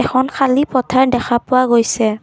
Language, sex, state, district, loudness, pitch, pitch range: Assamese, female, Assam, Kamrup Metropolitan, -15 LUFS, 255 Hz, 240-260 Hz